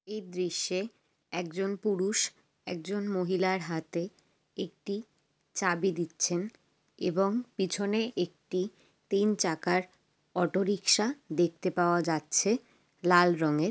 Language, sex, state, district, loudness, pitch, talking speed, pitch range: Bengali, female, West Bengal, Jalpaiguri, -30 LUFS, 185 Hz, 95 wpm, 175-200 Hz